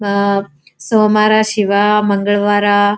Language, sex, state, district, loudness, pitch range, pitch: Kannada, female, Karnataka, Dharwad, -13 LUFS, 200-210 Hz, 205 Hz